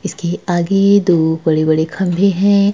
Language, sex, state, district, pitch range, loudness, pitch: Hindi, female, Uttar Pradesh, Jalaun, 160-200 Hz, -14 LUFS, 180 Hz